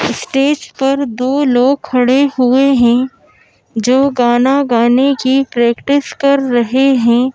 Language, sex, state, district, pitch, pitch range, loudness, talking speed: Hindi, female, Madhya Pradesh, Bhopal, 265 Hz, 245-275 Hz, -12 LUFS, 125 wpm